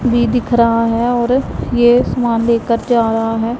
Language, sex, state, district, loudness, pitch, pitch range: Hindi, female, Punjab, Pathankot, -14 LUFS, 235 Hz, 230-240 Hz